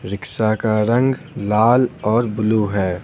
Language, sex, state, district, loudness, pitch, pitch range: Hindi, male, Bihar, Patna, -18 LUFS, 110 Hz, 105-120 Hz